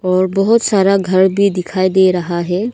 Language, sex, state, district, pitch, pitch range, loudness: Hindi, female, Arunachal Pradesh, Longding, 190 Hz, 185-195 Hz, -14 LUFS